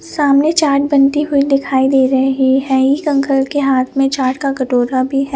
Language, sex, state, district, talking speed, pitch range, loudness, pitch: Hindi, female, Punjab, Fazilka, 200 wpm, 265-280 Hz, -14 LUFS, 275 Hz